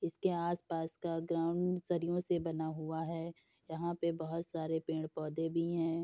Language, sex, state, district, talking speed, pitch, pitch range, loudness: Hindi, female, Uttar Pradesh, Etah, 180 wpm, 165 Hz, 160-170 Hz, -37 LUFS